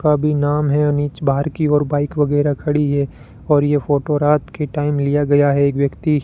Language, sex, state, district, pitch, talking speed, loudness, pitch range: Hindi, male, Rajasthan, Bikaner, 145 Hz, 210 wpm, -17 LUFS, 145-150 Hz